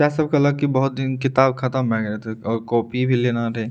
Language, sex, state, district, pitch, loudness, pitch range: Maithili, male, Bihar, Madhepura, 130 Hz, -20 LUFS, 115-135 Hz